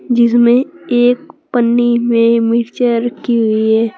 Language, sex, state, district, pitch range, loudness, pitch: Hindi, female, Uttar Pradesh, Saharanpur, 230-245 Hz, -13 LUFS, 240 Hz